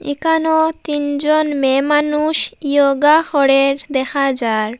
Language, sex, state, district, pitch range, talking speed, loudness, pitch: Bengali, female, Assam, Hailakandi, 275-310 Hz, 100 wpm, -15 LUFS, 285 Hz